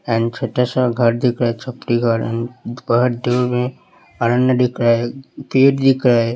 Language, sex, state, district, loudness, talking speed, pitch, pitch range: Hindi, male, Uttar Pradesh, Hamirpur, -17 LUFS, 150 wpm, 120 Hz, 115-125 Hz